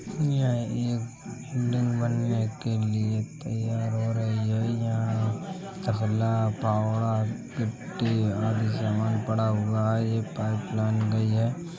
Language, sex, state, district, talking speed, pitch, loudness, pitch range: Hindi, male, Uttar Pradesh, Hamirpur, 120 wpm, 115 Hz, -27 LUFS, 110-120 Hz